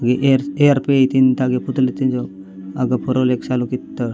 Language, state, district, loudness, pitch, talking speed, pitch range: Gondi, Chhattisgarh, Sukma, -17 LUFS, 130 Hz, 205 wpm, 125-135 Hz